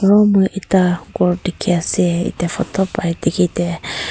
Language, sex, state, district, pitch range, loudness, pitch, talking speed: Nagamese, female, Nagaland, Kohima, 170-190 Hz, -17 LUFS, 180 Hz, 160 wpm